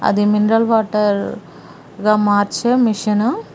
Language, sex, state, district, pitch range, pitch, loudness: Telugu, female, Telangana, Mahabubabad, 205-225 Hz, 210 Hz, -16 LUFS